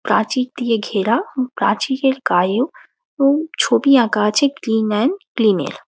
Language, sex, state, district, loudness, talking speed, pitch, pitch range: Bengali, female, West Bengal, Jalpaiguri, -17 LUFS, 135 wpm, 245 Hz, 215-275 Hz